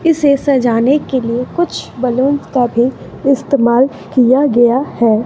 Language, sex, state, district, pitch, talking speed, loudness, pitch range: Hindi, female, Bihar, West Champaran, 260 Hz, 135 wpm, -13 LUFS, 240-280 Hz